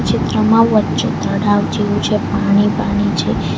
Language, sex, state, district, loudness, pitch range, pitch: Gujarati, female, Gujarat, Valsad, -15 LUFS, 200-210 Hz, 205 Hz